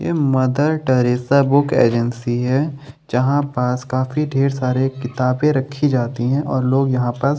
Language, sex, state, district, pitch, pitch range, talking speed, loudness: Hindi, male, Maharashtra, Chandrapur, 130 Hz, 125-140 Hz, 160 wpm, -18 LUFS